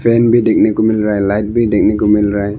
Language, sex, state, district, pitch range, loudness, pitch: Hindi, male, Arunachal Pradesh, Longding, 105-115 Hz, -13 LUFS, 110 Hz